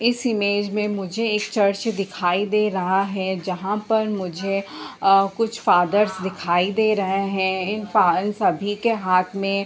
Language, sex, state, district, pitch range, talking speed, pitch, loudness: Hindi, female, Uttar Pradesh, Varanasi, 190-210 Hz, 170 wpm, 200 Hz, -21 LUFS